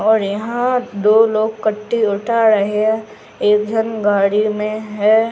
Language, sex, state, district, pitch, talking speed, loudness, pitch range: Hindi, female, Uttarakhand, Tehri Garhwal, 215 Hz, 145 wpm, -16 LUFS, 210-225 Hz